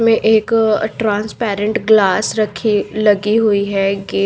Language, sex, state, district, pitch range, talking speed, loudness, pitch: Hindi, female, Maharashtra, Mumbai Suburban, 205-220 Hz, 155 wpm, -15 LUFS, 215 Hz